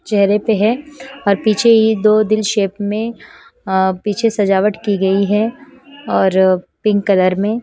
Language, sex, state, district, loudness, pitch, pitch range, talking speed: Hindi, female, Himachal Pradesh, Shimla, -15 LUFS, 210 Hz, 200-230 Hz, 155 wpm